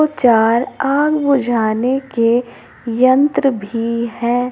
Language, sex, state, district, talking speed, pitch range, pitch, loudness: Hindi, female, Uttar Pradesh, Saharanpur, 95 wpm, 230-270 Hz, 245 Hz, -15 LUFS